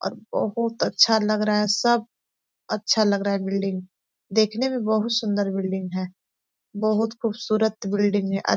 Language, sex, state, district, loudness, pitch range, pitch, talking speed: Hindi, female, Chhattisgarh, Korba, -23 LUFS, 195-220 Hz, 215 Hz, 170 wpm